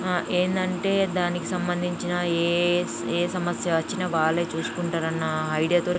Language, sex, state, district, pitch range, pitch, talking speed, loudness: Telugu, female, Andhra Pradesh, Chittoor, 170-180 Hz, 175 Hz, 140 wpm, -25 LUFS